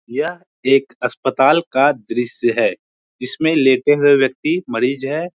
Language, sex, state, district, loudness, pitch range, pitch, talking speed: Hindi, male, Bihar, Supaul, -17 LUFS, 130-160 Hz, 135 Hz, 135 wpm